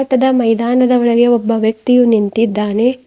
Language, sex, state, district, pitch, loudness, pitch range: Kannada, female, Karnataka, Bidar, 240 Hz, -13 LUFS, 225-250 Hz